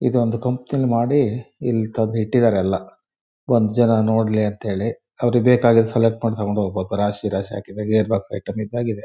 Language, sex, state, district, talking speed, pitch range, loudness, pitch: Kannada, male, Karnataka, Shimoga, 180 wpm, 105-120 Hz, -20 LUFS, 115 Hz